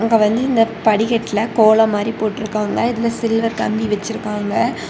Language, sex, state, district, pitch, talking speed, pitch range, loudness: Tamil, female, Tamil Nadu, Kanyakumari, 220 Hz, 145 wpm, 215-225 Hz, -17 LUFS